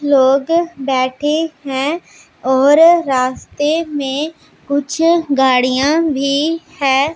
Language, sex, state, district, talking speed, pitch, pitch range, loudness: Hindi, female, Punjab, Pathankot, 85 wpm, 285 Hz, 270-320 Hz, -15 LUFS